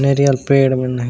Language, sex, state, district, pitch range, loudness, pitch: Chhattisgarhi, male, Chhattisgarh, Raigarh, 130-140 Hz, -15 LUFS, 135 Hz